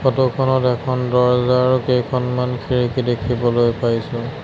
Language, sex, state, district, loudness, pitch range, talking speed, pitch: Assamese, male, Assam, Sonitpur, -18 LUFS, 120-130 Hz, 120 wpm, 125 Hz